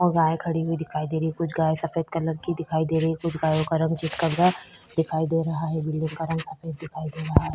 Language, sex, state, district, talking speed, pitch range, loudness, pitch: Hindi, female, Uttarakhand, Tehri Garhwal, 260 wpm, 160-165 Hz, -26 LUFS, 160 Hz